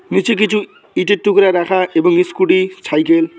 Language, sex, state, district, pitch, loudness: Bengali, male, West Bengal, Cooch Behar, 205 Hz, -14 LUFS